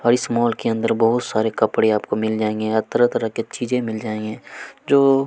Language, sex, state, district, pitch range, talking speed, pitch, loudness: Hindi, male, Chhattisgarh, Kabirdham, 110-120 Hz, 205 wpm, 115 Hz, -20 LUFS